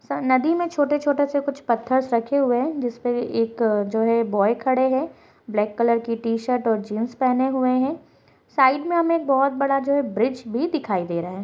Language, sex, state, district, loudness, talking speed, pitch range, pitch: Hindi, female, Bihar, Muzaffarpur, -22 LUFS, 205 wpm, 230-280 Hz, 255 Hz